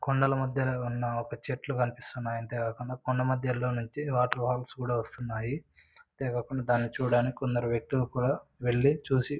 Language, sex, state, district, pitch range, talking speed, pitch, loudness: Telugu, male, Andhra Pradesh, Anantapur, 120-130 Hz, 145 wpm, 125 Hz, -31 LUFS